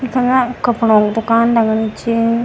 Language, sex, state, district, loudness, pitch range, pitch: Garhwali, female, Uttarakhand, Tehri Garhwal, -14 LUFS, 220-245 Hz, 230 Hz